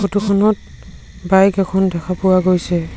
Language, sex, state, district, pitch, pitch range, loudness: Assamese, male, Assam, Sonitpur, 190 Hz, 185-200 Hz, -16 LUFS